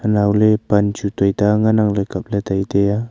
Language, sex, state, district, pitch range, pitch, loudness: Wancho, male, Arunachal Pradesh, Longding, 100-105 Hz, 105 Hz, -17 LUFS